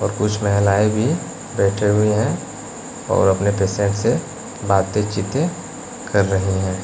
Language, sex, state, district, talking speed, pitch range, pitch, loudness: Hindi, male, Bihar, West Champaran, 140 wpm, 95-105 Hz, 100 Hz, -19 LUFS